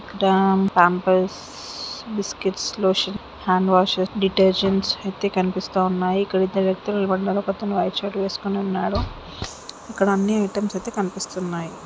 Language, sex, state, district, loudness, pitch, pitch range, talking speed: Telugu, female, Telangana, Karimnagar, -21 LUFS, 195 Hz, 185-200 Hz, 120 wpm